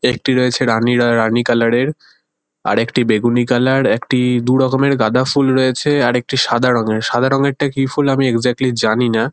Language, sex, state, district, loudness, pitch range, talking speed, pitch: Bengali, male, West Bengal, Kolkata, -15 LUFS, 120-135 Hz, 180 wpm, 125 Hz